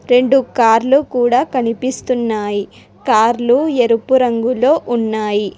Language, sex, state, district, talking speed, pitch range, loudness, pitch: Telugu, female, Telangana, Hyderabad, 85 wpm, 225-260 Hz, -15 LUFS, 245 Hz